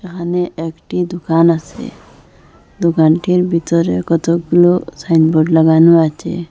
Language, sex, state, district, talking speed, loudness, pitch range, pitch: Bengali, female, Assam, Hailakandi, 90 wpm, -13 LUFS, 160-175 Hz, 170 Hz